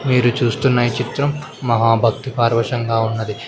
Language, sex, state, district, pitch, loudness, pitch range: Telugu, male, Andhra Pradesh, Sri Satya Sai, 120 Hz, -18 LUFS, 115-130 Hz